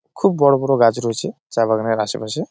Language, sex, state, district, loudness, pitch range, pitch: Bengali, male, West Bengal, Jalpaiguri, -18 LUFS, 115-140 Hz, 120 Hz